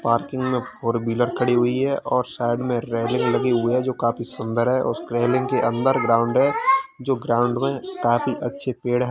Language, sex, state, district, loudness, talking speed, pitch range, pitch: Hindi, male, Uttar Pradesh, Hamirpur, -21 LUFS, 210 wpm, 120-130 Hz, 125 Hz